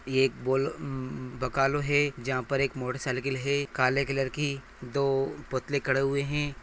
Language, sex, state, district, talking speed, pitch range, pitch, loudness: Hindi, male, Maharashtra, Solapur, 170 wpm, 130-140 Hz, 135 Hz, -29 LUFS